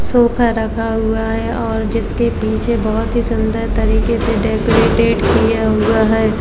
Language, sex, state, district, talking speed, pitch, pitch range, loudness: Hindi, female, Maharashtra, Chandrapur, 150 wpm, 225 Hz, 220-230 Hz, -15 LUFS